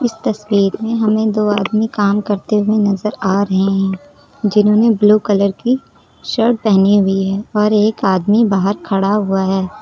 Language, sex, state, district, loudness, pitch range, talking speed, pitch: Hindi, female, Uttar Pradesh, Lucknow, -15 LUFS, 195-215 Hz, 165 wpm, 210 Hz